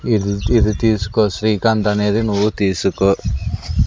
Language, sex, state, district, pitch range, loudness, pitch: Telugu, male, Andhra Pradesh, Sri Satya Sai, 100-110 Hz, -17 LUFS, 105 Hz